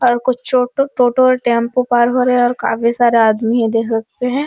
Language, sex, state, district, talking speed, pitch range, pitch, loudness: Hindi, female, Bihar, Araria, 255 wpm, 235-250 Hz, 245 Hz, -14 LUFS